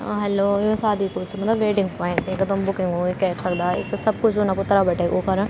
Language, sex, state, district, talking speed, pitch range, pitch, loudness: Garhwali, female, Uttarakhand, Tehri Garhwal, 250 wpm, 185-205 Hz, 195 Hz, -22 LUFS